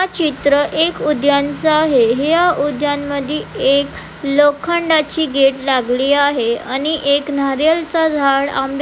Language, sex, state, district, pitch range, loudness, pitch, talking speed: Marathi, female, Maharashtra, Pune, 275-310 Hz, -15 LUFS, 285 Hz, 130 wpm